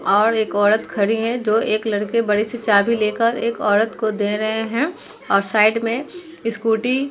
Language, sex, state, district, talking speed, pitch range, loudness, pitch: Hindi, female, Uttar Pradesh, Muzaffarnagar, 195 wpm, 210-235 Hz, -19 LUFS, 220 Hz